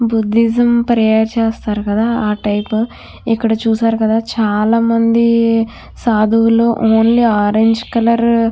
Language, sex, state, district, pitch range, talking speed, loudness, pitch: Telugu, female, Andhra Pradesh, Krishna, 220-230 Hz, 105 wpm, -14 LUFS, 225 Hz